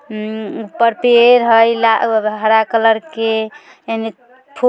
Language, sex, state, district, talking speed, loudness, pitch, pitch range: Bajjika, female, Bihar, Vaishali, 90 wpm, -14 LUFS, 225 Hz, 220-235 Hz